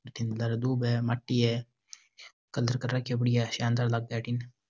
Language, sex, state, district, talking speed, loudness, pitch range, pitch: Rajasthani, male, Rajasthan, Churu, 180 wpm, -30 LUFS, 115-120 Hz, 120 Hz